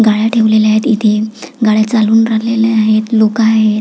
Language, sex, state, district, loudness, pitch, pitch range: Marathi, female, Maharashtra, Pune, -11 LUFS, 220 Hz, 215-225 Hz